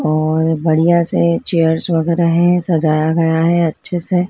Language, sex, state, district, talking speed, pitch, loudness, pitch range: Hindi, female, Madhya Pradesh, Dhar, 155 wpm, 165 Hz, -14 LUFS, 160-170 Hz